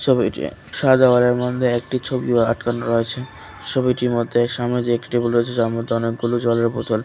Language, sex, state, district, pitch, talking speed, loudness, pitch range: Bengali, male, Tripura, West Tripura, 120 Hz, 170 wpm, -19 LUFS, 115-125 Hz